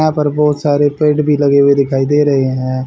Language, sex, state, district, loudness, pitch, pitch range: Hindi, male, Haryana, Charkhi Dadri, -13 LUFS, 145 Hz, 140-150 Hz